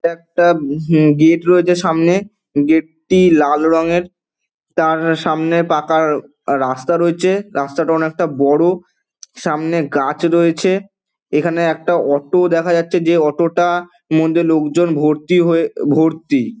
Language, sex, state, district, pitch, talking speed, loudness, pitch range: Bengali, male, West Bengal, Dakshin Dinajpur, 165 Hz, 115 wpm, -15 LUFS, 160-175 Hz